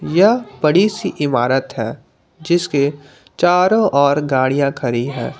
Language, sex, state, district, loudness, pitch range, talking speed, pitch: Hindi, male, Jharkhand, Palamu, -16 LUFS, 135-180 Hz, 120 wpm, 145 Hz